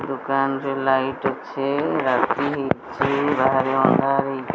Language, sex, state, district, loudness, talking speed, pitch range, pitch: Odia, female, Odisha, Sambalpur, -21 LUFS, 130 wpm, 135-140 Hz, 135 Hz